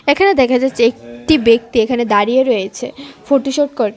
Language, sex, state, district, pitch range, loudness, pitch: Bengali, female, Tripura, West Tripura, 225-275 Hz, -14 LUFS, 250 Hz